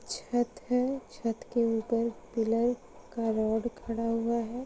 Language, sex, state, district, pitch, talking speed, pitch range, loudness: Hindi, female, Bihar, Gopalganj, 230 Hz, 155 wpm, 230-240 Hz, -31 LUFS